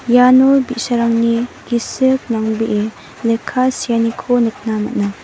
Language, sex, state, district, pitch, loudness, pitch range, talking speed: Garo, female, Meghalaya, West Garo Hills, 235 Hz, -16 LUFS, 225-250 Hz, 90 wpm